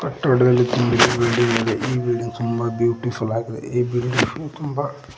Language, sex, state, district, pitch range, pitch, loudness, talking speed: Kannada, male, Karnataka, Koppal, 115-130 Hz, 120 Hz, -20 LUFS, 150 wpm